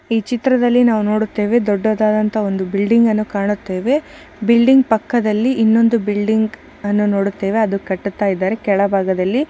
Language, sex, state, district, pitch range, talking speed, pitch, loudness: Kannada, female, Karnataka, Chamarajanagar, 200-235 Hz, 125 wpm, 215 Hz, -16 LUFS